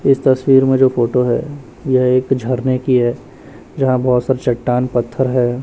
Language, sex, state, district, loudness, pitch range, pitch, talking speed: Hindi, male, Chhattisgarh, Raipur, -15 LUFS, 125-130 Hz, 130 Hz, 180 wpm